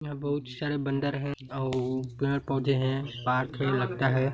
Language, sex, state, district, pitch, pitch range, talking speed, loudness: Hindi, male, Chhattisgarh, Sarguja, 135 Hz, 130-140 Hz, 165 wpm, -29 LUFS